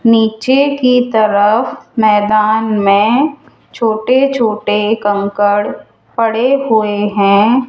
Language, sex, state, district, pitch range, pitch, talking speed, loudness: Hindi, female, Rajasthan, Jaipur, 210-250 Hz, 220 Hz, 85 wpm, -12 LUFS